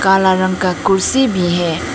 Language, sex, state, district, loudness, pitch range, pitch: Hindi, female, Arunachal Pradesh, Lower Dibang Valley, -14 LUFS, 175-195 Hz, 185 Hz